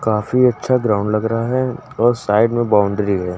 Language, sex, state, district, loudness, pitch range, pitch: Hindi, male, Uttar Pradesh, Muzaffarnagar, -17 LUFS, 105-125 Hz, 115 Hz